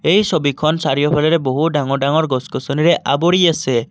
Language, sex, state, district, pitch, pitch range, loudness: Assamese, male, Assam, Kamrup Metropolitan, 150 Hz, 140-165 Hz, -16 LUFS